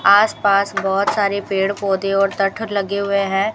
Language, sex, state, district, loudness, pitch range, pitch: Hindi, female, Rajasthan, Bikaner, -18 LUFS, 195-200 Hz, 200 Hz